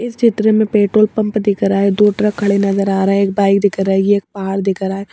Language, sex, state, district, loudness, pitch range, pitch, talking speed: Hindi, female, Madhya Pradesh, Bhopal, -14 LUFS, 195-210 Hz, 200 Hz, 305 wpm